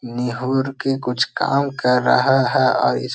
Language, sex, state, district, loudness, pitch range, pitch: Hindi, male, Bihar, Jahanabad, -18 LUFS, 125-135 Hz, 130 Hz